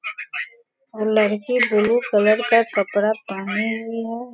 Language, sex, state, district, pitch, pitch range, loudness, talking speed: Hindi, female, Bihar, Sitamarhi, 220 Hz, 210-240 Hz, -20 LUFS, 110 wpm